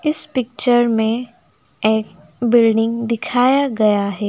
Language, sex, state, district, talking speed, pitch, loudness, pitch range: Hindi, female, West Bengal, Alipurduar, 110 wpm, 230 Hz, -17 LUFS, 210-245 Hz